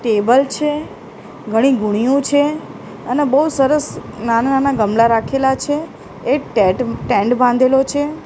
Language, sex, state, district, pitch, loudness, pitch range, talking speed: Gujarati, female, Maharashtra, Mumbai Suburban, 265 Hz, -16 LUFS, 230-285 Hz, 125 wpm